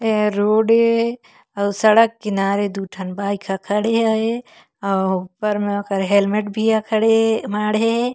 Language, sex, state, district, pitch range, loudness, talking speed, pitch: Chhattisgarhi, female, Chhattisgarh, Korba, 200-225 Hz, -19 LUFS, 175 wpm, 210 Hz